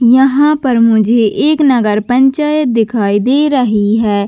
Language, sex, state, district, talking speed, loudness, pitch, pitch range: Hindi, female, Chhattisgarh, Bastar, 140 wpm, -11 LUFS, 245 Hz, 215-275 Hz